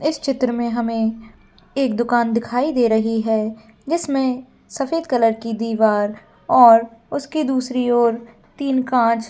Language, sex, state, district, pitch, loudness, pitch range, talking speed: Hindi, female, Jharkhand, Jamtara, 235 Hz, -19 LUFS, 225-260 Hz, 135 wpm